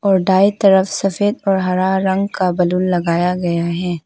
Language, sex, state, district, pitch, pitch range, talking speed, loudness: Hindi, female, Arunachal Pradesh, Papum Pare, 185 Hz, 180-195 Hz, 175 wpm, -16 LUFS